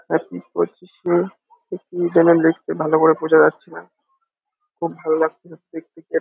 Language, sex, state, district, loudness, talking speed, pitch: Bengali, male, West Bengal, Jalpaiguri, -19 LUFS, 175 wpm, 175 Hz